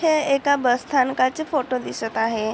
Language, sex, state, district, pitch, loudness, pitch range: Marathi, female, Maharashtra, Chandrapur, 260 Hz, -21 LUFS, 250-295 Hz